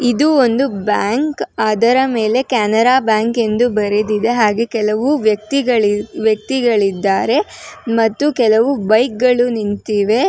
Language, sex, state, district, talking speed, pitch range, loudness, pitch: Kannada, female, Karnataka, Bangalore, 105 wpm, 215-250 Hz, -15 LUFS, 230 Hz